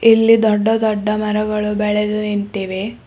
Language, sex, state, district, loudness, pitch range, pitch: Kannada, female, Karnataka, Bidar, -17 LUFS, 210-220 Hz, 210 Hz